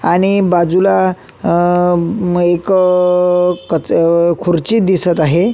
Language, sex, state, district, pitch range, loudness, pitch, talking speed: Marathi, male, Maharashtra, Solapur, 175-185 Hz, -13 LUFS, 180 Hz, 120 wpm